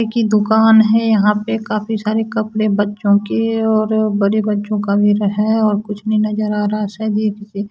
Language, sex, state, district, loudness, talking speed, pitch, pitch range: Bhojpuri, male, Bihar, Saran, -16 LUFS, 210 wpm, 215 Hz, 210-220 Hz